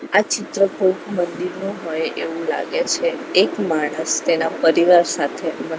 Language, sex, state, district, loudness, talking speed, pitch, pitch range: Gujarati, female, Gujarat, Gandhinagar, -19 LUFS, 135 wpm, 175 Hz, 165-195 Hz